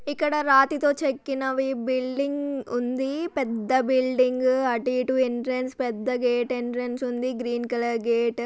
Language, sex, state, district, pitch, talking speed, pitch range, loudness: Telugu, female, Telangana, Nalgonda, 255 Hz, 120 wpm, 245-270 Hz, -25 LUFS